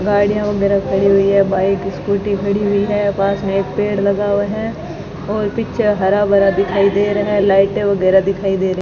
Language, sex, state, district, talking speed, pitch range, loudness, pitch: Hindi, female, Rajasthan, Bikaner, 205 wpm, 195-205 Hz, -15 LUFS, 200 Hz